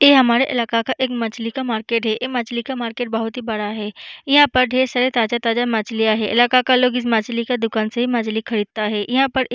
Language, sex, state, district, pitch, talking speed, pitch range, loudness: Hindi, female, Bihar, Vaishali, 235 Hz, 230 wpm, 225-250 Hz, -19 LUFS